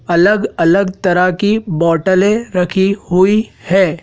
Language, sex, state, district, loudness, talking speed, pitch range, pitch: Hindi, male, Madhya Pradesh, Dhar, -13 LUFS, 120 wpm, 175-200 Hz, 185 Hz